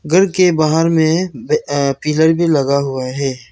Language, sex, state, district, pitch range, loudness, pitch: Hindi, male, Arunachal Pradesh, Lower Dibang Valley, 140-165 Hz, -15 LUFS, 155 Hz